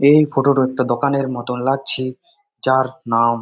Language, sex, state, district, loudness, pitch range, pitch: Bengali, male, West Bengal, Jalpaiguri, -18 LUFS, 125-140 Hz, 130 Hz